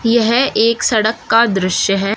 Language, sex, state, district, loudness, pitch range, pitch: Hindi, female, Uttar Pradesh, Shamli, -14 LUFS, 200-230 Hz, 225 Hz